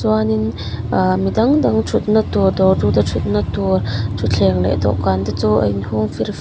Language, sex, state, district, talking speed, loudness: Mizo, female, Mizoram, Aizawl, 180 wpm, -17 LUFS